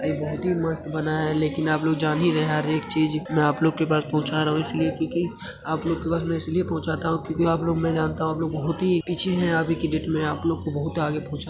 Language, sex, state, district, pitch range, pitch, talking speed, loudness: Hindi, male, Uttar Pradesh, Hamirpur, 155-165 Hz, 160 Hz, 295 wpm, -24 LUFS